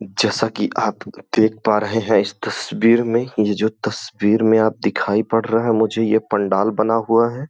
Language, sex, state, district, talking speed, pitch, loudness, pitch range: Hindi, male, Uttar Pradesh, Gorakhpur, 200 wpm, 110 Hz, -18 LUFS, 110-115 Hz